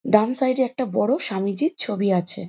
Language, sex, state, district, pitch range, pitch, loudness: Bengali, female, West Bengal, Jhargram, 200-260 Hz, 220 Hz, -22 LUFS